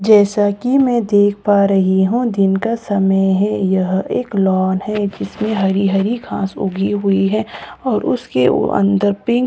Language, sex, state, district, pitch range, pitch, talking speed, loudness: Hindi, female, Bihar, Katihar, 195-215 Hz, 200 Hz, 190 wpm, -16 LUFS